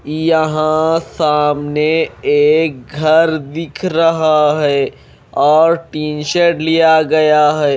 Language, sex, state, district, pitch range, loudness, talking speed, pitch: Hindi, male, Odisha, Malkangiri, 150-160 Hz, -13 LUFS, 100 wpm, 155 Hz